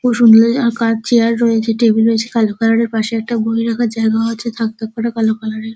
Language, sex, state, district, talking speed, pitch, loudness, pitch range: Bengali, female, West Bengal, Dakshin Dinajpur, 240 wpm, 225 Hz, -14 LUFS, 225-230 Hz